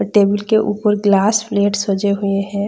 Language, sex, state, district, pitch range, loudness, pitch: Hindi, female, Bihar, Darbhanga, 200-210 Hz, -16 LUFS, 205 Hz